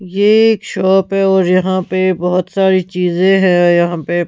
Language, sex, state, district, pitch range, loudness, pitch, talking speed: Hindi, female, Punjab, Pathankot, 180-190 Hz, -13 LUFS, 185 Hz, 180 wpm